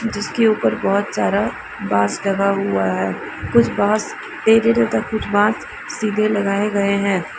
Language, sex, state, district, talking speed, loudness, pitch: Hindi, female, Jharkhand, Deoghar, 145 wpm, -18 LUFS, 200 Hz